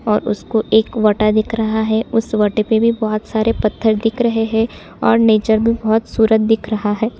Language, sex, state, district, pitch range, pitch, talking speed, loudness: Hindi, female, Chhattisgarh, Sukma, 215-225 Hz, 220 Hz, 215 wpm, -16 LUFS